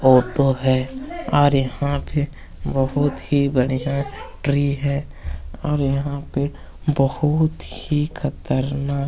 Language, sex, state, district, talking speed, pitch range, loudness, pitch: Hindi, male, Chhattisgarh, Kabirdham, 105 wpm, 135-145 Hz, -21 LUFS, 140 Hz